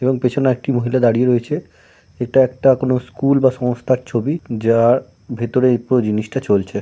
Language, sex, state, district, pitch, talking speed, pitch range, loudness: Bengali, male, West Bengal, Jalpaiguri, 125 Hz, 160 wpm, 115-130 Hz, -17 LUFS